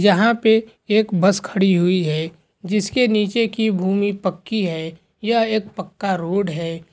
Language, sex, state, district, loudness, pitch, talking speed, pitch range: Hindi, male, Jharkhand, Jamtara, -19 LUFS, 200 Hz, 165 wpm, 180-220 Hz